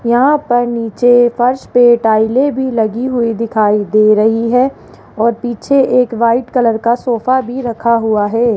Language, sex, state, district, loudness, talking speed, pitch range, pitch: Hindi, female, Rajasthan, Jaipur, -13 LUFS, 160 wpm, 225-250 Hz, 235 Hz